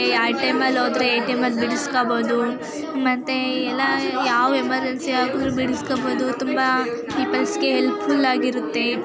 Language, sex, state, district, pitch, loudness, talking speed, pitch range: Kannada, female, Karnataka, Mysore, 260 Hz, -21 LUFS, 115 wpm, 250-265 Hz